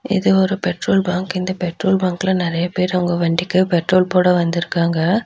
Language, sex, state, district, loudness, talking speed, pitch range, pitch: Tamil, female, Tamil Nadu, Nilgiris, -17 LUFS, 160 wpm, 175-190 Hz, 180 Hz